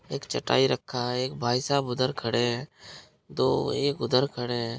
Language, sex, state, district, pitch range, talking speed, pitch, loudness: Hindi, male, Bihar, Araria, 120-130 Hz, 190 wpm, 125 Hz, -27 LUFS